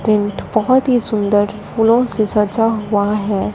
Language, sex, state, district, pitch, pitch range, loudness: Hindi, female, Punjab, Fazilka, 215 Hz, 205-225 Hz, -15 LUFS